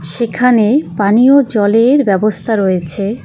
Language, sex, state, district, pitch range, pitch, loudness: Bengali, female, West Bengal, Cooch Behar, 200-245 Hz, 215 Hz, -12 LUFS